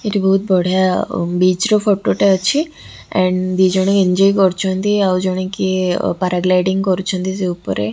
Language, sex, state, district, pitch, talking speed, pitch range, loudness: Odia, female, Odisha, Khordha, 185 Hz, 150 wpm, 185-195 Hz, -16 LUFS